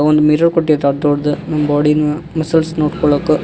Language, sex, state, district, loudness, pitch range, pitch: Kannada, male, Karnataka, Koppal, -14 LUFS, 150-160 Hz, 150 Hz